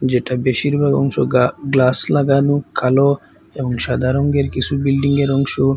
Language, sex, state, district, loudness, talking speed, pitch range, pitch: Bengali, male, Assam, Hailakandi, -17 LUFS, 135 wpm, 130-140 Hz, 135 Hz